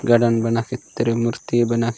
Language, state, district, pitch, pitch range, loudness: Gondi, Chhattisgarh, Sukma, 115 Hz, 115-120 Hz, -20 LUFS